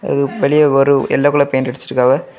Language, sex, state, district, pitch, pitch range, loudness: Tamil, male, Tamil Nadu, Kanyakumari, 140 Hz, 130-140 Hz, -14 LUFS